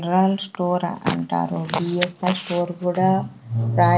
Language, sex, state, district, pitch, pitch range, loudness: Telugu, female, Andhra Pradesh, Sri Satya Sai, 175 Hz, 130-185 Hz, -22 LUFS